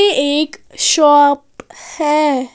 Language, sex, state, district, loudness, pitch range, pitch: Hindi, female, Haryana, Jhajjar, -13 LUFS, 285-325 Hz, 300 Hz